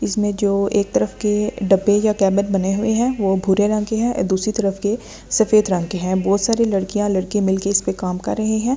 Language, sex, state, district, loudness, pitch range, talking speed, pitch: Hindi, female, Delhi, New Delhi, -19 LUFS, 195-215 Hz, 240 wpm, 200 Hz